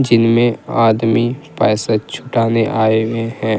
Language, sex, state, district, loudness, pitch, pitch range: Hindi, male, Jharkhand, Deoghar, -15 LUFS, 115 Hz, 110-120 Hz